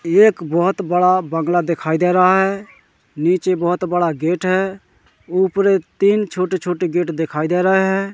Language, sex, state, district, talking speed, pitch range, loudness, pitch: Hindi, male, Madhya Pradesh, Katni, 160 wpm, 170-190 Hz, -17 LUFS, 180 Hz